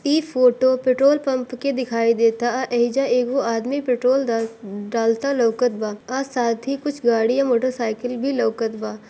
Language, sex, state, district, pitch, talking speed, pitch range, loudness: Bhojpuri, female, Bihar, Gopalganj, 245 Hz, 160 wpm, 230-265 Hz, -20 LUFS